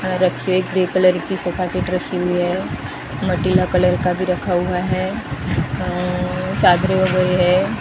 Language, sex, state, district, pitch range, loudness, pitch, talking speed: Hindi, female, Maharashtra, Gondia, 180-185 Hz, -19 LUFS, 180 Hz, 160 wpm